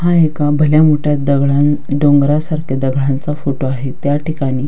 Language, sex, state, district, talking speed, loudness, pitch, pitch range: Marathi, female, Maharashtra, Dhule, 140 wpm, -14 LUFS, 145 Hz, 135-150 Hz